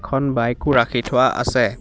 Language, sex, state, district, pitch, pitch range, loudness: Assamese, male, Assam, Hailakandi, 120 Hz, 115-135 Hz, -18 LUFS